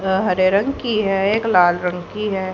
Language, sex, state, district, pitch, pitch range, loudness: Hindi, female, Haryana, Rohtak, 195 Hz, 185-210 Hz, -18 LUFS